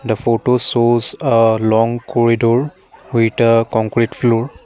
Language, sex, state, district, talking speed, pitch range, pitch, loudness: English, male, Assam, Kamrup Metropolitan, 130 wpm, 115-120 Hz, 115 Hz, -15 LUFS